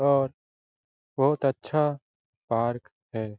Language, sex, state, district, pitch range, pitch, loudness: Hindi, male, Bihar, Lakhisarai, 105-140 Hz, 120 Hz, -27 LUFS